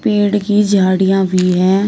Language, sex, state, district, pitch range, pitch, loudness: Hindi, female, Uttar Pradesh, Shamli, 185-205 Hz, 195 Hz, -13 LUFS